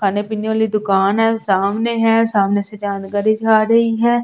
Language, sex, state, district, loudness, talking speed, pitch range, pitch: Hindi, female, Delhi, New Delhi, -16 LUFS, 185 wpm, 200-225 Hz, 215 Hz